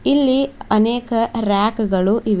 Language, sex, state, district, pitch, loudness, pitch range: Kannada, female, Karnataka, Bidar, 225 Hz, -18 LUFS, 210-245 Hz